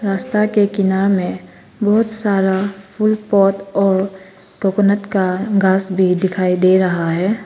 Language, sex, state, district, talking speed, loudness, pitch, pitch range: Hindi, female, Arunachal Pradesh, Papum Pare, 135 wpm, -16 LUFS, 195 Hz, 190-205 Hz